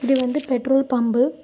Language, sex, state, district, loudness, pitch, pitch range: Tamil, female, Tamil Nadu, Kanyakumari, -20 LUFS, 260 Hz, 250-270 Hz